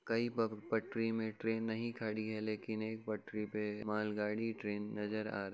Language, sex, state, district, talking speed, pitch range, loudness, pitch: Hindi, male, Uttar Pradesh, Jyotiba Phule Nagar, 195 wpm, 105-115 Hz, -39 LUFS, 110 Hz